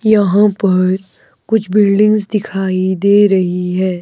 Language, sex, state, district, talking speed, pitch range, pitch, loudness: Hindi, female, Himachal Pradesh, Shimla, 120 wpm, 185-210 Hz, 195 Hz, -13 LUFS